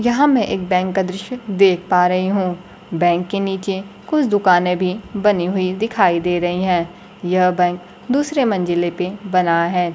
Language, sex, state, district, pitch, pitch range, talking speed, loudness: Hindi, female, Bihar, Kaimur, 185 Hz, 180-200 Hz, 180 wpm, -18 LUFS